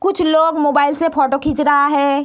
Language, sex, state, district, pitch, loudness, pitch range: Hindi, female, Bihar, Begusarai, 290 Hz, -15 LUFS, 285-320 Hz